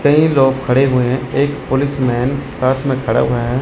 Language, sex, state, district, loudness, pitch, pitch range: Hindi, male, Chandigarh, Chandigarh, -15 LUFS, 135 Hz, 125-140 Hz